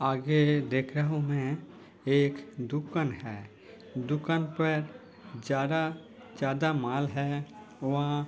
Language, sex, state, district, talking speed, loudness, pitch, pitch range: Hindi, male, Uttar Pradesh, Hamirpur, 110 wpm, -30 LUFS, 145 Hz, 135-155 Hz